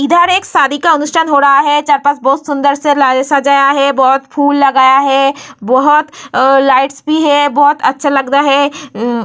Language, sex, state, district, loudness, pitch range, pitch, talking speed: Hindi, female, Bihar, Vaishali, -10 LUFS, 275-295 Hz, 280 Hz, 200 wpm